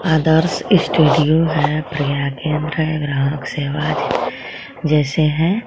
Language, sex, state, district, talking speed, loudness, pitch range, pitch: Hindi, female, Jharkhand, Garhwa, 105 wpm, -17 LUFS, 150-160 Hz, 155 Hz